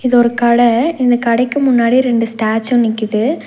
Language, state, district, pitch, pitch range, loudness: Tamil, Tamil Nadu, Nilgiris, 240 Hz, 230-250 Hz, -13 LUFS